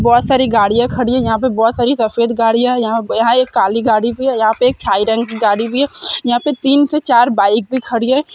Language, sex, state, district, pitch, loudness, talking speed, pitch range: Hindi, female, Bihar, Gopalganj, 235 Hz, -14 LUFS, 250 wpm, 225-255 Hz